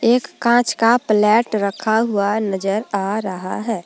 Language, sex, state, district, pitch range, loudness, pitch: Hindi, female, Jharkhand, Palamu, 200-230 Hz, -18 LUFS, 215 Hz